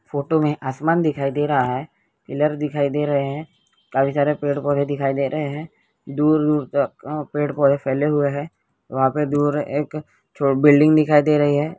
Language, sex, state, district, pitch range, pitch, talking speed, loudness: Hindi, male, West Bengal, Malda, 140-150 Hz, 145 Hz, 195 wpm, -20 LUFS